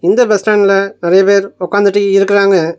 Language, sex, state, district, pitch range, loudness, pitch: Tamil, male, Tamil Nadu, Nilgiris, 195-205 Hz, -11 LUFS, 200 Hz